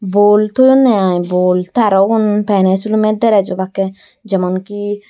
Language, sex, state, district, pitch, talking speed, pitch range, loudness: Chakma, female, Tripura, Dhalai, 205 Hz, 140 wpm, 190-215 Hz, -13 LUFS